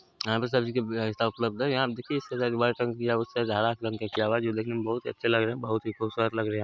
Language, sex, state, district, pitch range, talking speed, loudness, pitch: Hindi, male, Bihar, Araria, 110-120 Hz, 145 wpm, -29 LUFS, 115 Hz